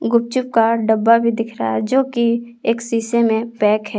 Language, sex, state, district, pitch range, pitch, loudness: Hindi, female, Jharkhand, Palamu, 225-235 Hz, 230 Hz, -17 LUFS